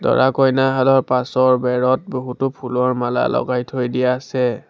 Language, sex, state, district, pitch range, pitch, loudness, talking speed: Assamese, male, Assam, Sonitpur, 125-130 Hz, 130 Hz, -18 LUFS, 130 wpm